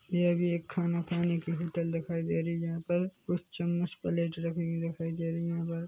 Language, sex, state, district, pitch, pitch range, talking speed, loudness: Hindi, male, Chhattisgarh, Korba, 170 Hz, 165-175 Hz, 245 wpm, -32 LUFS